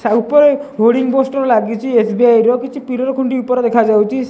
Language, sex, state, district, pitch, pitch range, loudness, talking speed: Odia, male, Odisha, Khordha, 250 Hz, 230-265 Hz, -13 LUFS, 165 wpm